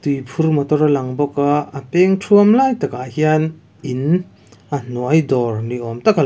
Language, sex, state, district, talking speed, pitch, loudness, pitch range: Mizo, male, Mizoram, Aizawl, 180 wpm, 145 Hz, -17 LUFS, 125-160 Hz